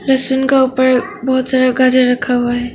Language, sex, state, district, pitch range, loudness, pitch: Hindi, female, Arunachal Pradesh, Longding, 250-265 Hz, -13 LUFS, 255 Hz